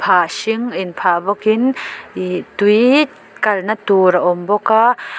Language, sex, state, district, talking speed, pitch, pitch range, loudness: Mizo, female, Mizoram, Aizawl, 125 wpm, 210 Hz, 185-225 Hz, -15 LUFS